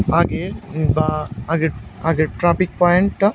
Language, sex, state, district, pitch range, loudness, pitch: Bengali, male, Tripura, West Tripura, 155-180 Hz, -19 LUFS, 165 Hz